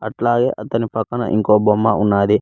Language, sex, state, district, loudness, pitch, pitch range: Telugu, male, Telangana, Mahabubabad, -17 LUFS, 110 Hz, 105-115 Hz